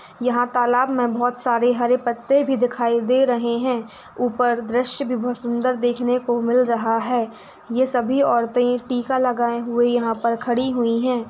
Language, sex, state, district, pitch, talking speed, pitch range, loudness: Hindi, female, Uttar Pradesh, Etah, 245 Hz, 165 wpm, 235-250 Hz, -20 LUFS